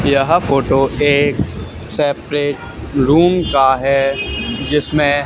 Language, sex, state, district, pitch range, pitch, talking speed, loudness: Hindi, male, Haryana, Charkhi Dadri, 135-145 Hz, 140 Hz, 90 wpm, -15 LUFS